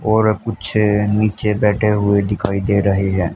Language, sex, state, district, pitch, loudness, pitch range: Hindi, male, Haryana, Charkhi Dadri, 105 Hz, -17 LUFS, 100-105 Hz